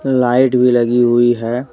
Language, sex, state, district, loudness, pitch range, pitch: Hindi, male, Jharkhand, Deoghar, -13 LUFS, 120-125 Hz, 120 Hz